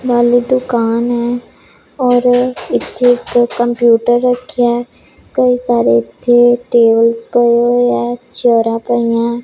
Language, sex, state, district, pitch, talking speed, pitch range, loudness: Punjabi, female, Punjab, Pathankot, 240 Hz, 110 wpm, 235-245 Hz, -13 LUFS